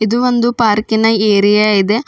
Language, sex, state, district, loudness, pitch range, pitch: Kannada, female, Karnataka, Bidar, -12 LUFS, 210-235 Hz, 220 Hz